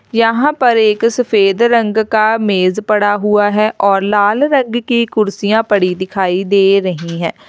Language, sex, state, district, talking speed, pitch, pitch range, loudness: Hindi, female, Uttar Pradesh, Lalitpur, 160 wpm, 210 Hz, 200-230 Hz, -13 LUFS